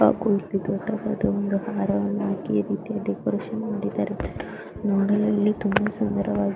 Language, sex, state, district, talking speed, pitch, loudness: Kannada, female, Karnataka, Mysore, 75 wpm, 200 Hz, -25 LUFS